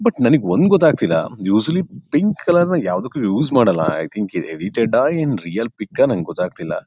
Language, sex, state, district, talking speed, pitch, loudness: Kannada, male, Karnataka, Bellary, 175 wpm, 130 Hz, -18 LUFS